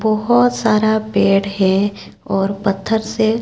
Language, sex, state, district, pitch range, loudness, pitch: Hindi, female, Chhattisgarh, Raipur, 200-220 Hz, -16 LUFS, 215 Hz